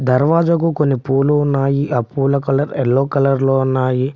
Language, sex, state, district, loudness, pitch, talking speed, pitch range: Telugu, male, Telangana, Mahabubabad, -16 LUFS, 135 Hz, 160 wpm, 130-145 Hz